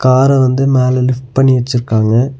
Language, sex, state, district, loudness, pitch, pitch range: Tamil, male, Tamil Nadu, Nilgiris, -12 LUFS, 130 Hz, 120-130 Hz